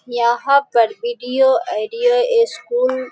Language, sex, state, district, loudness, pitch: Hindi, female, Bihar, Sitamarhi, -17 LUFS, 265 Hz